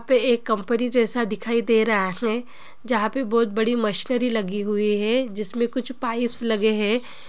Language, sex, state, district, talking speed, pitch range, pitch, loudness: Hindi, female, Bihar, Gopalganj, 180 wpm, 215-240 Hz, 230 Hz, -22 LUFS